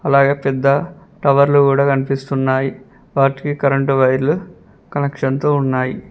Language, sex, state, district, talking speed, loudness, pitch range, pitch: Telugu, male, Telangana, Mahabubabad, 100 wpm, -16 LUFS, 135-145 Hz, 140 Hz